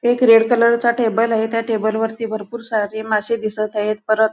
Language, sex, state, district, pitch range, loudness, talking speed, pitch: Marathi, female, Goa, North and South Goa, 215-230 Hz, -18 LUFS, 205 wpm, 225 Hz